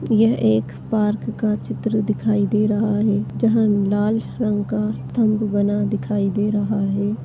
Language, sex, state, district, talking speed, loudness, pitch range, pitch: Hindi, female, Chhattisgarh, Raigarh, 150 wpm, -20 LUFS, 200-215 Hz, 210 Hz